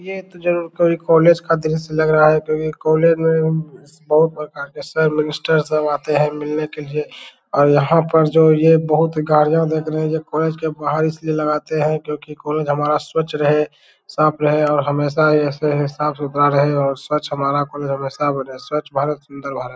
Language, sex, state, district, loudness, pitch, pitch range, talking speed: Hindi, male, Bihar, Saran, -17 LUFS, 150 Hz, 145-160 Hz, 200 wpm